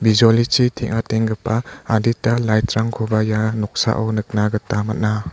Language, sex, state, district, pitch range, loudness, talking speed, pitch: Garo, male, Meghalaya, West Garo Hills, 110-115 Hz, -19 LUFS, 100 wpm, 110 Hz